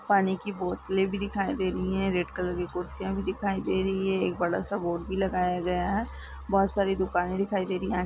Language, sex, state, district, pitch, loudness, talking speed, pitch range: Hindi, female, Chhattisgarh, Korba, 190 Hz, -29 LUFS, 230 wpm, 180-195 Hz